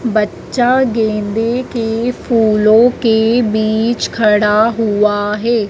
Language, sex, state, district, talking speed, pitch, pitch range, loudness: Hindi, female, Madhya Pradesh, Dhar, 95 wpm, 225 Hz, 215-235 Hz, -13 LUFS